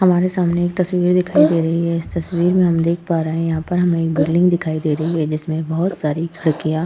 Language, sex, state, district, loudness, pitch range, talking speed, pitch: Hindi, female, Uttar Pradesh, Etah, -18 LUFS, 160-175 Hz, 260 wpm, 170 Hz